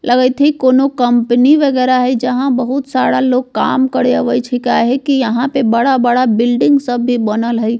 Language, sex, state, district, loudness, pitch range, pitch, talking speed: Bajjika, female, Bihar, Vaishali, -13 LUFS, 240-265 Hz, 250 Hz, 175 wpm